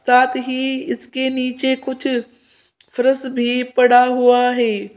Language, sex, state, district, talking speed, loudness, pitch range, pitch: Hindi, female, Uttar Pradesh, Saharanpur, 120 wpm, -17 LUFS, 245-260 Hz, 250 Hz